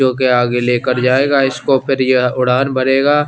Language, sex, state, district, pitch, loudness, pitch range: Hindi, male, Chandigarh, Chandigarh, 130 Hz, -14 LUFS, 125-135 Hz